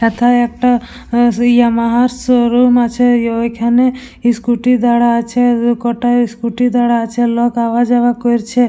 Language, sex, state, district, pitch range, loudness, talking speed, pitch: Bengali, female, West Bengal, Purulia, 235-245 Hz, -13 LUFS, 115 wpm, 240 Hz